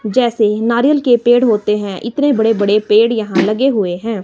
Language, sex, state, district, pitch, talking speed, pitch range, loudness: Hindi, female, Himachal Pradesh, Shimla, 225 Hz, 200 wpm, 210-240 Hz, -14 LUFS